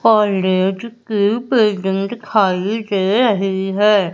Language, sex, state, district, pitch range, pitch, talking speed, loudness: Hindi, female, Madhya Pradesh, Umaria, 195-220 Hz, 205 Hz, 115 wpm, -16 LUFS